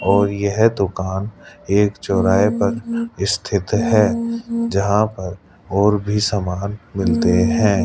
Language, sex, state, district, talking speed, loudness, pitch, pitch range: Hindi, male, Rajasthan, Jaipur, 115 wpm, -18 LUFS, 100 Hz, 95-110 Hz